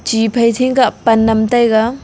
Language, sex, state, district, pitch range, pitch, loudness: Wancho, female, Arunachal Pradesh, Longding, 225-240 Hz, 230 Hz, -13 LUFS